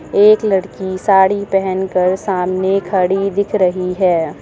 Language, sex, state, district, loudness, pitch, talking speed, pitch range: Hindi, female, Uttar Pradesh, Lucknow, -15 LUFS, 190 Hz, 135 wpm, 185-195 Hz